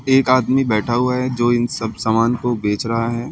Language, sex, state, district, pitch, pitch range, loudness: Hindi, male, Delhi, New Delhi, 120 Hz, 115-125 Hz, -18 LUFS